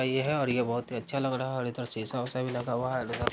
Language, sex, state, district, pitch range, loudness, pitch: Hindi, male, Bihar, Saharsa, 120-130 Hz, -31 LUFS, 125 Hz